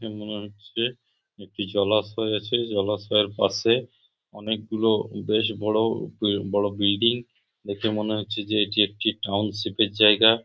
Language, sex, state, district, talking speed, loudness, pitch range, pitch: Bengali, male, West Bengal, Purulia, 130 wpm, -24 LUFS, 105-110 Hz, 105 Hz